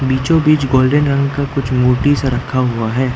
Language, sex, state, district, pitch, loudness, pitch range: Hindi, male, Arunachal Pradesh, Lower Dibang Valley, 130 Hz, -14 LUFS, 130-140 Hz